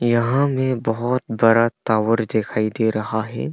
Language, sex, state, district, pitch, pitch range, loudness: Hindi, male, Arunachal Pradesh, Longding, 115 Hz, 110-120 Hz, -20 LUFS